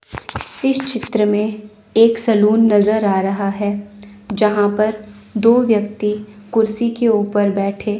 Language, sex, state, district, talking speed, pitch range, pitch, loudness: Hindi, female, Chandigarh, Chandigarh, 125 wpm, 205-220 Hz, 210 Hz, -16 LUFS